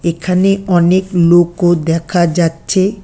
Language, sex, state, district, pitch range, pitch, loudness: Bengali, female, West Bengal, Alipurduar, 170-185 Hz, 175 Hz, -13 LUFS